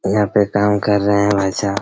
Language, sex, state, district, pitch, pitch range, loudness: Hindi, male, Chhattisgarh, Raigarh, 100 Hz, 100-105 Hz, -16 LUFS